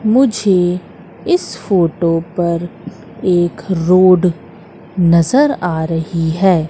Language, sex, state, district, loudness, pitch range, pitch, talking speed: Hindi, female, Madhya Pradesh, Katni, -14 LUFS, 170-195 Hz, 180 Hz, 90 wpm